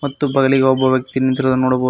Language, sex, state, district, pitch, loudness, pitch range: Kannada, male, Karnataka, Koppal, 130 Hz, -16 LUFS, 130-135 Hz